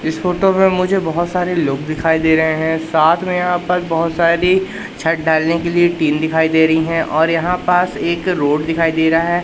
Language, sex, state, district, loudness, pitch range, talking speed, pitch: Hindi, male, Madhya Pradesh, Katni, -15 LUFS, 160-180 Hz, 220 wpm, 165 Hz